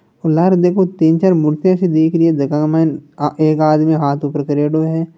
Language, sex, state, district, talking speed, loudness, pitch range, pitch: Marwari, male, Rajasthan, Nagaur, 195 wpm, -14 LUFS, 150-165 Hz, 160 Hz